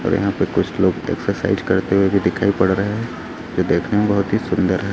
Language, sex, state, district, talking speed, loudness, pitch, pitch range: Hindi, male, Chhattisgarh, Raipur, 245 wpm, -19 LUFS, 100 Hz, 95-105 Hz